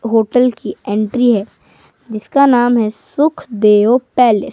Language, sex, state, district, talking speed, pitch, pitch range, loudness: Hindi, female, Himachal Pradesh, Shimla, 130 wpm, 230 Hz, 215-250 Hz, -13 LUFS